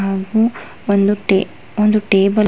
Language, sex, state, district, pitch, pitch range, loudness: Kannada, female, Karnataka, Bangalore, 205 Hz, 195-215 Hz, -16 LUFS